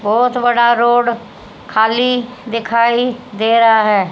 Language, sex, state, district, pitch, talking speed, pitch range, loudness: Hindi, female, Haryana, Jhajjar, 235 Hz, 115 wpm, 220-245 Hz, -14 LUFS